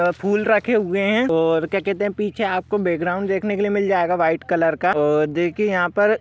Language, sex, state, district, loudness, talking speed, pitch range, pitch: Hindi, male, Jharkhand, Sahebganj, -20 LUFS, 215 wpm, 175-205 Hz, 195 Hz